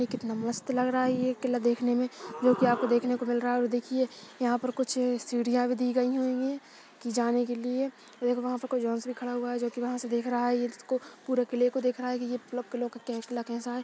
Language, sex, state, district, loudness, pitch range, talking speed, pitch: Hindi, female, Chhattisgarh, Balrampur, -30 LUFS, 245-250 Hz, 255 wpm, 245 Hz